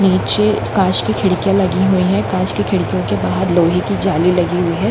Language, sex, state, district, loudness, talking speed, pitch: Hindi, female, Chhattisgarh, Bilaspur, -15 LUFS, 230 wpm, 180 Hz